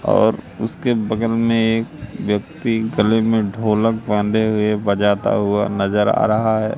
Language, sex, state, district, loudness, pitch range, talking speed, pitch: Hindi, male, Madhya Pradesh, Katni, -18 LUFS, 105-115 Hz, 150 wpm, 110 Hz